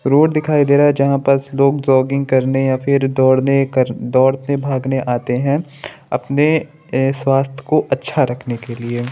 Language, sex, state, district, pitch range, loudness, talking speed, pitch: Hindi, male, Maharashtra, Chandrapur, 130-140 Hz, -16 LUFS, 170 wpm, 135 Hz